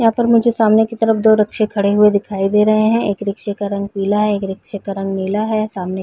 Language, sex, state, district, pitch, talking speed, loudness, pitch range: Hindi, female, Chhattisgarh, Raigarh, 210 Hz, 270 wpm, -16 LUFS, 200-220 Hz